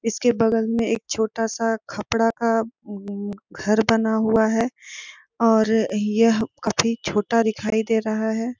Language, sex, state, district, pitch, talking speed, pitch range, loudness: Hindi, female, Jharkhand, Sahebganj, 225 Hz, 155 wpm, 220-230 Hz, -21 LUFS